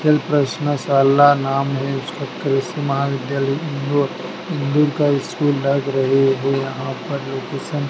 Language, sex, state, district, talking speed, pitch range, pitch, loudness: Hindi, male, Madhya Pradesh, Dhar, 145 wpm, 135-145 Hz, 140 Hz, -19 LUFS